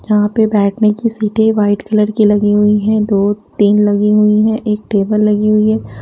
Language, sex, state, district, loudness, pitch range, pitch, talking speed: Hindi, female, Haryana, Jhajjar, -13 LUFS, 205-215 Hz, 210 Hz, 210 wpm